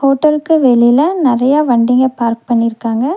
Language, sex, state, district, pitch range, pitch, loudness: Tamil, female, Tamil Nadu, Nilgiris, 235-295 Hz, 255 Hz, -12 LUFS